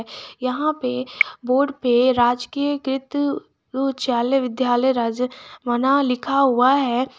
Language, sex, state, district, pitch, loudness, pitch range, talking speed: Hindi, female, Jharkhand, Garhwa, 255 Hz, -20 LUFS, 245-275 Hz, 110 wpm